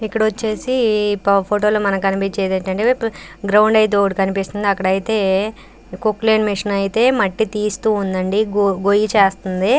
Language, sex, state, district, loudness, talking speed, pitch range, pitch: Telugu, female, Andhra Pradesh, Anantapur, -17 LUFS, 130 wpm, 195-215 Hz, 205 Hz